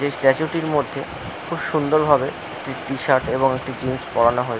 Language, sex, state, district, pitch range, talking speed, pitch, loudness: Bengali, male, West Bengal, North 24 Parganas, 130-145 Hz, 185 wpm, 135 Hz, -21 LUFS